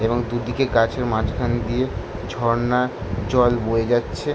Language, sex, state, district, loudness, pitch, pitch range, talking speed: Bengali, male, West Bengal, Jalpaiguri, -21 LUFS, 120 Hz, 110-120 Hz, 125 wpm